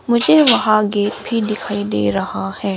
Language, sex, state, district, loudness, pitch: Hindi, female, Arunachal Pradesh, Lower Dibang Valley, -16 LUFS, 210 Hz